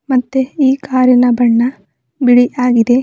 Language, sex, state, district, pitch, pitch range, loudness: Kannada, female, Karnataka, Bidar, 250 Hz, 240-265 Hz, -12 LUFS